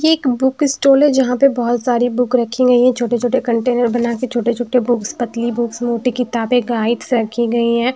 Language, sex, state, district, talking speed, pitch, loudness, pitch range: Hindi, female, Himachal Pradesh, Shimla, 205 wpm, 245 Hz, -16 LUFS, 235-255 Hz